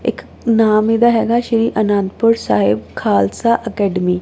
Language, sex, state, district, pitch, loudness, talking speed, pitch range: Punjabi, female, Punjab, Kapurthala, 215 Hz, -15 LUFS, 140 wpm, 180-230 Hz